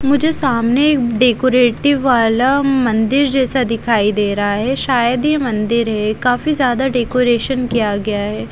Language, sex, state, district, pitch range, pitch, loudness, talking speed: Hindi, female, Haryana, Jhajjar, 225-270 Hz, 245 Hz, -15 LUFS, 140 wpm